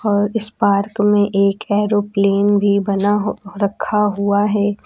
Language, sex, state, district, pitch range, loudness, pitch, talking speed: Hindi, female, Uttar Pradesh, Lucknow, 200-210 Hz, -17 LUFS, 205 Hz, 135 wpm